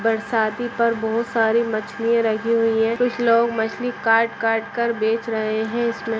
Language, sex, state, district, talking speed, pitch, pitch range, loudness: Hindi, female, Bihar, Saran, 185 wpm, 230 Hz, 225-235 Hz, -21 LUFS